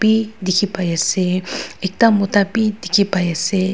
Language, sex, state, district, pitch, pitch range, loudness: Nagamese, female, Nagaland, Dimapur, 195 Hz, 185-215 Hz, -17 LUFS